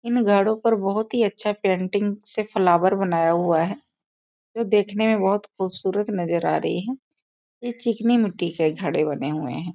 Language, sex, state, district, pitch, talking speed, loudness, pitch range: Hindi, female, Bihar, East Champaran, 205 Hz, 180 wpm, -22 LUFS, 175-220 Hz